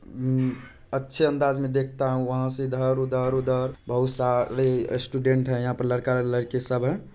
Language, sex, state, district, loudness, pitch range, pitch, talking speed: Hindi, male, Bihar, Purnia, -25 LUFS, 125-130 Hz, 130 Hz, 185 wpm